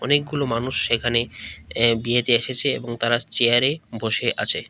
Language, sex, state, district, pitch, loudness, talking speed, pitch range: Bengali, male, Tripura, West Tripura, 120 Hz, -21 LUFS, 140 wpm, 115-125 Hz